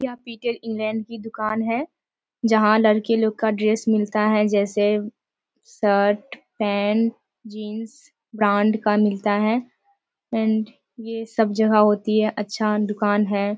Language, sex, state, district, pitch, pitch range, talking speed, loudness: Hindi, female, Bihar, Jamui, 215 Hz, 210-225 Hz, 135 wpm, -21 LUFS